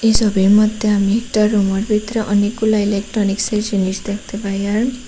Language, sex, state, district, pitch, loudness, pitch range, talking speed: Bengali, female, Assam, Hailakandi, 210 Hz, -17 LUFS, 200-220 Hz, 140 wpm